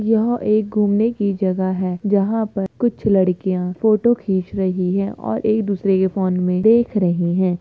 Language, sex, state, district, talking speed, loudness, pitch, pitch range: Hindi, female, Uttar Pradesh, Etah, 180 wpm, -18 LUFS, 195 Hz, 185-215 Hz